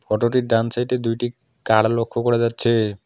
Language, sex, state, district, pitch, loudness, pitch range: Bengali, male, West Bengal, Alipurduar, 115 Hz, -20 LUFS, 115-120 Hz